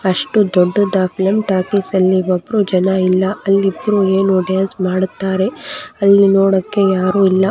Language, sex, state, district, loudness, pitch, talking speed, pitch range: Kannada, female, Karnataka, Belgaum, -14 LUFS, 190 Hz, 135 wpm, 185-200 Hz